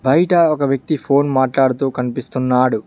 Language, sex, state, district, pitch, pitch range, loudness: Telugu, male, Telangana, Mahabubabad, 135 Hz, 130-145 Hz, -16 LUFS